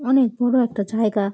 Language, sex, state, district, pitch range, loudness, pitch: Bengali, female, West Bengal, Jalpaiguri, 210-250 Hz, -20 LUFS, 230 Hz